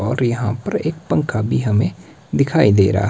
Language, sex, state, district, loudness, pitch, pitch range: Hindi, male, Himachal Pradesh, Shimla, -18 LUFS, 110 Hz, 105-130 Hz